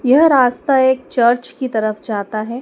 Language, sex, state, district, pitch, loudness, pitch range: Hindi, female, Madhya Pradesh, Dhar, 245 Hz, -16 LUFS, 220-260 Hz